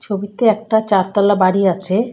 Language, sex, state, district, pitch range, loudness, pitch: Bengali, female, West Bengal, Malda, 190-220 Hz, -15 LUFS, 200 Hz